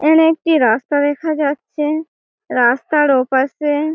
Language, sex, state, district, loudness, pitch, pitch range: Bengali, female, West Bengal, Malda, -16 LUFS, 295 Hz, 270-315 Hz